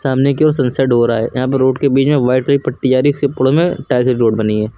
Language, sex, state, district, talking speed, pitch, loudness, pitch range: Hindi, male, Uttar Pradesh, Lucknow, 340 wpm, 130 Hz, -14 LUFS, 125-140 Hz